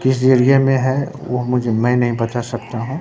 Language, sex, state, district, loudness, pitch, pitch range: Hindi, male, Bihar, Katihar, -17 LUFS, 125 Hz, 120-130 Hz